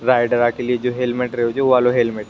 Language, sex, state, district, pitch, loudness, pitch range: Rajasthani, male, Rajasthan, Nagaur, 125 Hz, -18 LUFS, 120-125 Hz